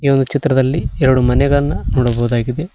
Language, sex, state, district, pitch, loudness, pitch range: Kannada, male, Karnataka, Koppal, 135 Hz, -15 LUFS, 125-140 Hz